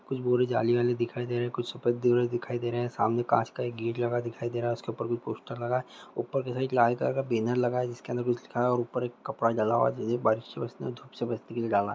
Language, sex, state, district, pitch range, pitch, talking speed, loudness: Hindi, male, Bihar, Lakhisarai, 115-125 Hz, 120 Hz, 310 wpm, -29 LUFS